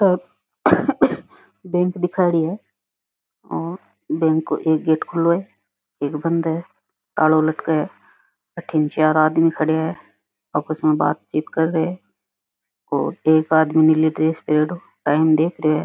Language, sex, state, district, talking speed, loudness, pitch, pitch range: Rajasthani, female, Rajasthan, Nagaur, 140 wpm, -19 LUFS, 160 Hz, 155-165 Hz